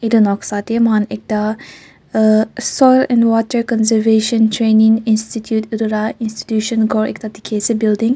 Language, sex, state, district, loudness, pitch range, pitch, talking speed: Nagamese, female, Nagaland, Kohima, -15 LUFS, 215-230 Hz, 220 Hz, 145 wpm